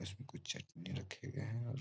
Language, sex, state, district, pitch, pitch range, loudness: Hindi, male, Bihar, Samastipur, 125 Hz, 115-135 Hz, -45 LUFS